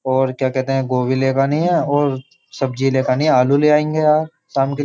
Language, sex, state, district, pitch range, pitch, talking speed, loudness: Hindi, male, Uttar Pradesh, Jyotiba Phule Nagar, 130-150 Hz, 135 Hz, 245 wpm, -17 LUFS